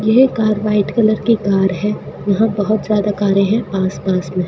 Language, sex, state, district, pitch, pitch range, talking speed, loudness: Hindi, female, Rajasthan, Bikaner, 205 Hz, 195-220 Hz, 200 wpm, -16 LUFS